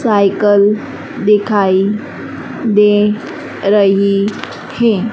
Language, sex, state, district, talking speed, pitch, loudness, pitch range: Hindi, female, Madhya Pradesh, Dhar, 60 wpm, 210 Hz, -13 LUFS, 200-215 Hz